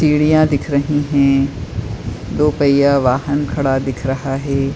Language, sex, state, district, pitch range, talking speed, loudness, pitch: Hindi, female, Uttar Pradesh, Etah, 135-145 Hz, 140 wpm, -16 LUFS, 140 Hz